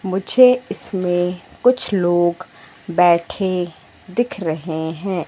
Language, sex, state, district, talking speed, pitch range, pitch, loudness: Hindi, female, Madhya Pradesh, Katni, 90 wpm, 175-200 Hz, 180 Hz, -18 LUFS